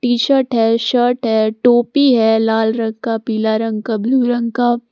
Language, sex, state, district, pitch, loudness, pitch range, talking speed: Hindi, female, Jharkhand, Palamu, 230 Hz, -15 LUFS, 225-245 Hz, 185 wpm